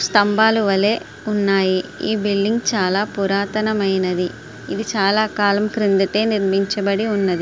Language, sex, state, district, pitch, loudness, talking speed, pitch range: Telugu, female, Andhra Pradesh, Srikakulam, 200 Hz, -18 LUFS, 105 wpm, 195-215 Hz